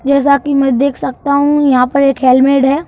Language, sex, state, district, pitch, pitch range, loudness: Hindi, male, Madhya Pradesh, Bhopal, 275 Hz, 265-280 Hz, -11 LUFS